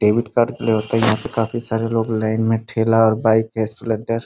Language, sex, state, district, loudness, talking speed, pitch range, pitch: Hindi, male, Bihar, Sitamarhi, -19 LUFS, 240 wpm, 110-115 Hz, 115 Hz